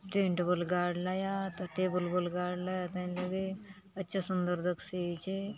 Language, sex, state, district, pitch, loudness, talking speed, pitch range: Halbi, female, Chhattisgarh, Bastar, 185 Hz, -34 LUFS, 150 wpm, 180-190 Hz